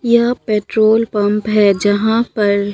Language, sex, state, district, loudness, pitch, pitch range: Hindi, female, Bihar, Katihar, -14 LUFS, 215 Hz, 205-225 Hz